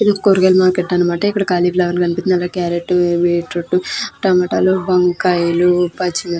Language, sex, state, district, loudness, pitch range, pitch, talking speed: Telugu, female, Andhra Pradesh, Krishna, -15 LUFS, 175-185 Hz, 180 Hz, 130 wpm